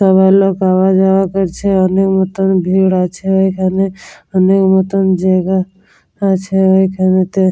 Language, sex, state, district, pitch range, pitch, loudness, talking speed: Bengali, female, West Bengal, Jalpaiguri, 185-195 Hz, 190 Hz, -12 LUFS, 120 wpm